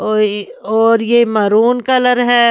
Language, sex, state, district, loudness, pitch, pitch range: Hindi, female, Maharashtra, Mumbai Suburban, -13 LUFS, 230 Hz, 215-245 Hz